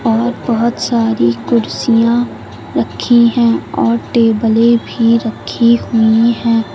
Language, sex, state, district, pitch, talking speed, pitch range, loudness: Hindi, female, Uttar Pradesh, Lucknow, 230 Hz, 115 wpm, 225-235 Hz, -13 LUFS